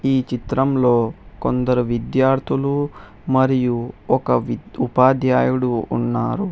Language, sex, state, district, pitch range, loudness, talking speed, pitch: Telugu, male, Telangana, Hyderabad, 120-130 Hz, -19 LUFS, 85 wpm, 125 Hz